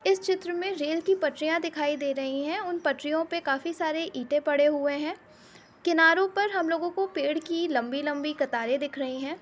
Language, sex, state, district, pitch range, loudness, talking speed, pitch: Hindi, female, Uttar Pradesh, Etah, 290-345 Hz, -27 LUFS, 205 wpm, 315 Hz